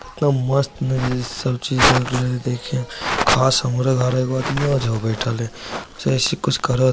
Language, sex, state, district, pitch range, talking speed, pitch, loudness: Hindi, male, Bihar, Jamui, 125-130 Hz, 80 wpm, 130 Hz, -20 LUFS